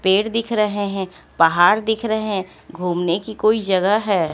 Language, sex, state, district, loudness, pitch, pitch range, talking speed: Hindi, female, Chhattisgarh, Raipur, -19 LUFS, 200 Hz, 180-215 Hz, 180 wpm